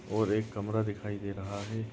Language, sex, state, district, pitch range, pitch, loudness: Hindi, male, Goa, North and South Goa, 100-110 Hz, 105 Hz, -34 LUFS